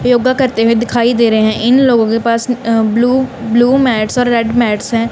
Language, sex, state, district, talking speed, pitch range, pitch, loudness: Hindi, female, Punjab, Kapurthala, 200 wpm, 230-245 Hz, 235 Hz, -12 LUFS